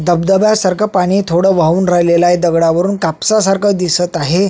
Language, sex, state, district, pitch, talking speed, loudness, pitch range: Marathi, male, Maharashtra, Sindhudurg, 180 Hz, 145 wpm, -12 LUFS, 170-195 Hz